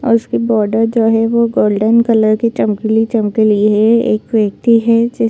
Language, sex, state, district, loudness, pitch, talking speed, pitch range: Hindi, female, Chhattisgarh, Bilaspur, -13 LUFS, 225 Hz, 170 wpm, 215-230 Hz